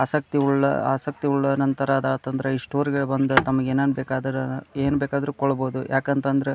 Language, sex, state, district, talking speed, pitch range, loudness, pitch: Kannada, male, Karnataka, Dharwad, 185 wpm, 135-140 Hz, -23 LUFS, 135 Hz